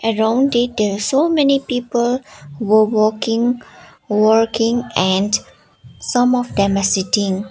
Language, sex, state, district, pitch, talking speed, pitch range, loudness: English, female, Sikkim, Gangtok, 225 Hz, 130 wpm, 205-245 Hz, -17 LUFS